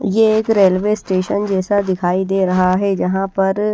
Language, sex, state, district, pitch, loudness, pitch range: Hindi, female, Haryana, Charkhi Dadri, 195 Hz, -16 LUFS, 185-205 Hz